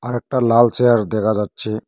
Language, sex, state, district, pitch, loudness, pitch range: Bengali, male, West Bengal, Cooch Behar, 115 Hz, -16 LUFS, 110-120 Hz